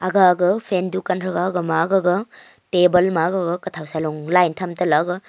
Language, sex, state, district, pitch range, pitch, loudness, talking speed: Wancho, female, Arunachal Pradesh, Longding, 170-185 Hz, 180 Hz, -19 LUFS, 170 wpm